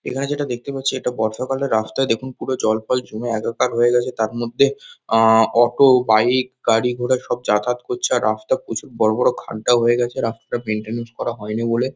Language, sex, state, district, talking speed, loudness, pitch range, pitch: Bengali, male, West Bengal, Kolkata, 195 wpm, -19 LUFS, 115-130 Hz, 120 Hz